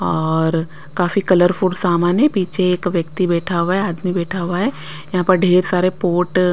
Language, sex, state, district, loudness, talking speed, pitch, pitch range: Hindi, female, Bihar, West Champaran, -17 LUFS, 195 wpm, 180 Hz, 170-185 Hz